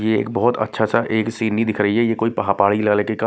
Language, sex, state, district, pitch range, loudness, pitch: Hindi, male, Punjab, Kapurthala, 105-115 Hz, -19 LUFS, 110 Hz